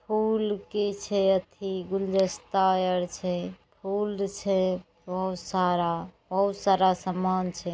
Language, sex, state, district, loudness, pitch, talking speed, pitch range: Maithili, female, Bihar, Saharsa, -27 LUFS, 190 Hz, 125 wpm, 180-200 Hz